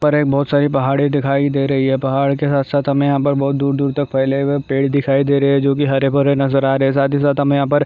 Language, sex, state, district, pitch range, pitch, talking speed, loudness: Hindi, male, Andhra Pradesh, Chittoor, 135-140 Hz, 140 Hz, 290 wpm, -16 LUFS